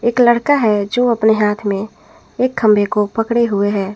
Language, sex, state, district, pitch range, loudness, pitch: Hindi, female, Jharkhand, Garhwa, 205-235 Hz, -15 LUFS, 220 Hz